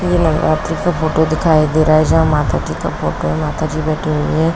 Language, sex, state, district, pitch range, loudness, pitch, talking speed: Hindi, female, Uttar Pradesh, Varanasi, 155-160 Hz, -15 LUFS, 155 Hz, 250 wpm